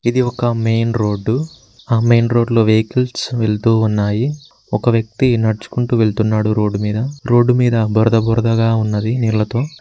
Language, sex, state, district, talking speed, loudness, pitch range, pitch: Telugu, male, Telangana, Mahabubabad, 140 wpm, -16 LUFS, 110-120 Hz, 115 Hz